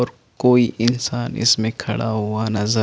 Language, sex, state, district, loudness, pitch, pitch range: Hindi, male, Chandigarh, Chandigarh, -19 LUFS, 115 Hz, 110-120 Hz